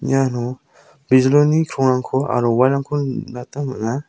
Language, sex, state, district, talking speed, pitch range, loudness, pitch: Garo, male, Meghalaya, South Garo Hills, 130 wpm, 125-140 Hz, -18 LUFS, 130 Hz